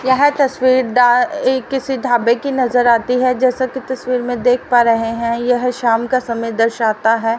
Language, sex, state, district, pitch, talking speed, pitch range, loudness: Hindi, female, Haryana, Rohtak, 250 Hz, 185 wpm, 235-260 Hz, -15 LUFS